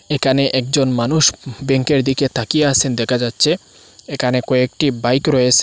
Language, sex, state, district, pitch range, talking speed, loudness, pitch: Bengali, male, Assam, Hailakandi, 125-140 Hz, 160 wpm, -16 LUFS, 130 Hz